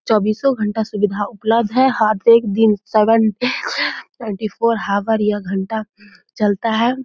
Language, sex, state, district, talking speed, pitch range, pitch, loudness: Hindi, female, Bihar, Muzaffarpur, 155 wpm, 210-230 Hz, 215 Hz, -17 LUFS